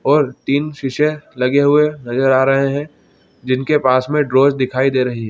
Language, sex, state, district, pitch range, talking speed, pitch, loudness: Hindi, male, Chhattisgarh, Bilaspur, 130-145 Hz, 190 wpm, 135 Hz, -16 LUFS